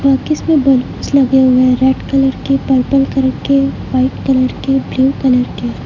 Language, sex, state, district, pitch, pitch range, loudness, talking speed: Hindi, female, Uttar Pradesh, Lucknow, 265 Hz, 255-275 Hz, -13 LUFS, 175 wpm